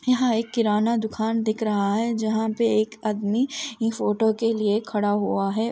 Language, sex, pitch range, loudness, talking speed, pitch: Hindi, female, 215-230 Hz, -23 LUFS, 165 wpm, 220 Hz